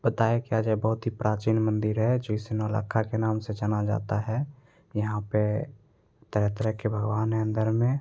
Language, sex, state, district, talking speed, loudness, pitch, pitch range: Hindi, male, Bihar, Begusarai, 180 wpm, -28 LUFS, 110 Hz, 105-115 Hz